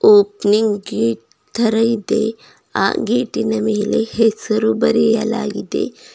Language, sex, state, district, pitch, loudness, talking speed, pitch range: Kannada, female, Karnataka, Bidar, 220 Hz, -17 LUFS, 90 wpm, 205-225 Hz